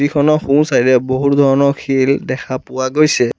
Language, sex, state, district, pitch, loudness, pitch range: Assamese, male, Assam, Sonitpur, 135 Hz, -14 LUFS, 130-145 Hz